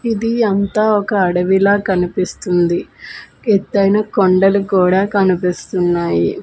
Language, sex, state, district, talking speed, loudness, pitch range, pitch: Telugu, female, Andhra Pradesh, Manyam, 95 wpm, -15 LUFS, 180-205 Hz, 195 Hz